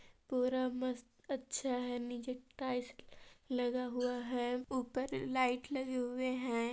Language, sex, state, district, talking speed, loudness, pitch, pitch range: Hindi, female, Chhattisgarh, Balrampur, 125 wpm, -38 LUFS, 250 Hz, 245-255 Hz